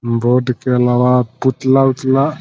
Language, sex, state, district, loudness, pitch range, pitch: Hindi, male, Bihar, Muzaffarpur, -14 LUFS, 125-130 Hz, 125 Hz